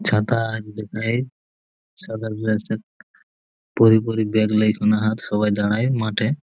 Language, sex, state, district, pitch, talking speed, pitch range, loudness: Bengali, male, West Bengal, Purulia, 110 Hz, 105 wpm, 105-110 Hz, -21 LUFS